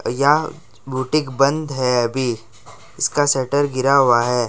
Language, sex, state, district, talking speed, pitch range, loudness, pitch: Hindi, male, Jharkhand, Ranchi, 135 wpm, 120-145 Hz, -18 LUFS, 130 Hz